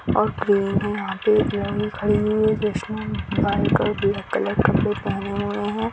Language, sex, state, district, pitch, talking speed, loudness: Hindi, female, Bihar, Samastipur, 200 Hz, 200 wpm, -22 LUFS